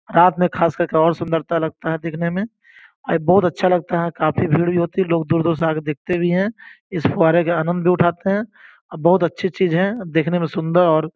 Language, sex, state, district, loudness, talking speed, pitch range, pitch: Hindi, male, Uttar Pradesh, Gorakhpur, -18 LUFS, 230 wpm, 165-180 Hz, 170 Hz